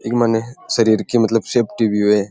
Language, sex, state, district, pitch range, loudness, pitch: Rajasthani, male, Rajasthan, Churu, 105-115 Hz, -17 LUFS, 115 Hz